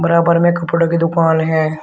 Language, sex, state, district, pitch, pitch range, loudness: Hindi, male, Uttar Pradesh, Shamli, 165 Hz, 160-170 Hz, -14 LUFS